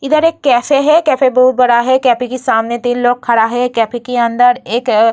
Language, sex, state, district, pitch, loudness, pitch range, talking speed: Hindi, female, Bihar, Vaishali, 245 Hz, -12 LUFS, 235-260 Hz, 235 wpm